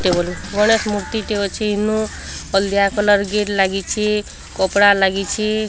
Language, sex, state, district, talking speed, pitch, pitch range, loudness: Odia, female, Odisha, Sambalpur, 115 wpm, 205 Hz, 195-210 Hz, -18 LUFS